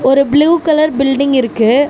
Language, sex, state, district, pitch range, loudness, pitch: Tamil, female, Tamil Nadu, Namakkal, 265-300 Hz, -12 LUFS, 275 Hz